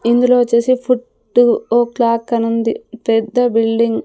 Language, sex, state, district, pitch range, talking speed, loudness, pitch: Telugu, female, Andhra Pradesh, Sri Satya Sai, 230-245 Hz, 150 wpm, -15 LUFS, 235 Hz